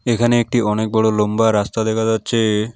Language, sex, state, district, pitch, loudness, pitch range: Bengali, male, West Bengal, Alipurduar, 110 Hz, -17 LUFS, 110-115 Hz